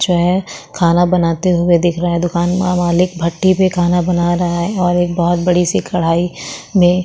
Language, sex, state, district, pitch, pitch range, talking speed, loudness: Hindi, female, Uttarakhand, Tehri Garhwal, 175 Hz, 175-180 Hz, 205 wpm, -14 LUFS